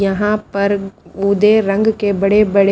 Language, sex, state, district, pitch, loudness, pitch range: Hindi, female, Haryana, Rohtak, 200 Hz, -15 LUFS, 200-210 Hz